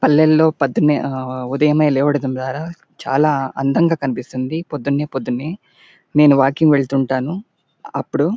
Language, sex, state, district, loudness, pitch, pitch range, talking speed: Telugu, male, Andhra Pradesh, Anantapur, -17 LUFS, 145 Hz, 135-155 Hz, 105 wpm